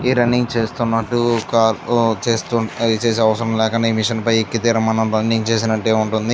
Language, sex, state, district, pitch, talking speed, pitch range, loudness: Telugu, male, Andhra Pradesh, Chittoor, 115 Hz, 150 wpm, 110-115 Hz, -17 LUFS